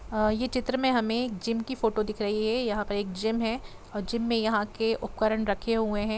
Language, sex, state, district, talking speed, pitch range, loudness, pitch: Hindi, female, Jharkhand, Jamtara, 255 wpm, 215-230 Hz, -28 LUFS, 220 Hz